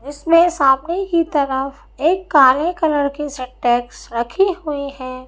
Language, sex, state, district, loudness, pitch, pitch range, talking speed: Hindi, female, Madhya Pradesh, Bhopal, -17 LUFS, 285 Hz, 260-335 Hz, 135 wpm